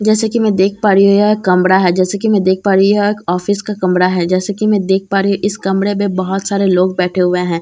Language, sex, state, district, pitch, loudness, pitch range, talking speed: Hindi, female, Bihar, Katihar, 195 Hz, -13 LUFS, 185-205 Hz, 315 wpm